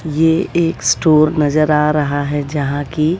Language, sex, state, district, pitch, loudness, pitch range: Hindi, female, Bihar, West Champaran, 150 Hz, -15 LUFS, 145-160 Hz